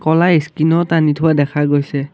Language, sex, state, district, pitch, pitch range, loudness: Assamese, male, Assam, Kamrup Metropolitan, 155 Hz, 145-165 Hz, -14 LUFS